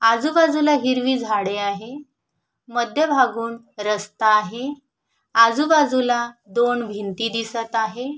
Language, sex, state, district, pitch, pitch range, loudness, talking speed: Marathi, female, Maharashtra, Sindhudurg, 235 Hz, 220-265 Hz, -20 LUFS, 95 wpm